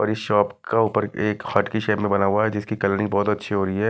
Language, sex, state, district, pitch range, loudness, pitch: Hindi, male, Himachal Pradesh, Shimla, 100-105 Hz, -22 LUFS, 105 Hz